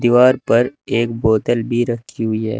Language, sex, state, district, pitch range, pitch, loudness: Hindi, male, Uttar Pradesh, Shamli, 115-120 Hz, 120 Hz, -17 LUFS